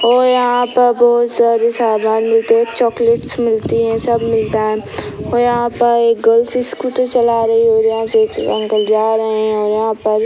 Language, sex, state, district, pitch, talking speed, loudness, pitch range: Hindi, female, Bihar, Sitamarhi, 230 Hz, 205 wpm, -14 LUFS, 220-240 Hz